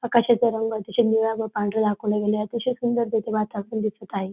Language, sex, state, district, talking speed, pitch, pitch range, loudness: Marathi, female, Maharashtra, Dhule, 205 wpm, 220 Hz, 210-235 Hz, -24 LUFS